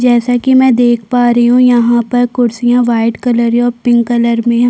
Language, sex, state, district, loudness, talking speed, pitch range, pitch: Hindi, female, Chhattisgarh, Kabirdham, -10 LUFS, 215 wpm, 235-245 Hz, 240 Hz